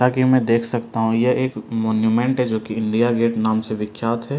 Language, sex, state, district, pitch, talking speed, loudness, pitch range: Hindi, male, Delhi, New Delhi, 115 Hz, 230 wpm, -20 LUFS, 110-125 Hz